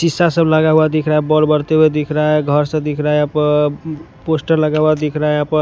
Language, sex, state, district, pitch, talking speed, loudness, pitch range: Hindi, male, Punjab, Kapurthala, 155 Hz, 300 wpm, -15 LUFS, 150-155 Hz